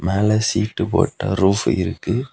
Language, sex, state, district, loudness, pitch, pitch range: Tamil, male, Tamil Nadu, Kanyakumari, -19 LUFS, 105 Hz, 95-110 Hz